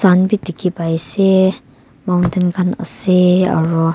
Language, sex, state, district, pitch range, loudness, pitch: Nagamese, female, Nagaland, Kohima, 165-185 Hz, -15 LUFS, 180 Hz